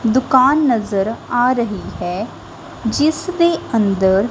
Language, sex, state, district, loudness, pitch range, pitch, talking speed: Punjabi, female, Punjab, Kapurthala, -17 LUFS, 205-265 Hz, 235 Hz, 110 wpm